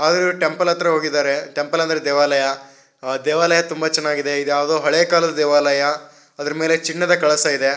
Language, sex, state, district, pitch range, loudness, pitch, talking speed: Kannada, male, Karnataka, Shimoga, 145-165 Hz, -18 LUFS, 150 Hz, 160 wpm